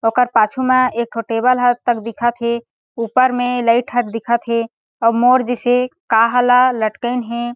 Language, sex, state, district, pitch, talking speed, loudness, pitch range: Chhattisgarhi, female, Chhattisgarh, Sarguja, 240 Hz, 190 wpm, -16 LUFS, 230-245 Hz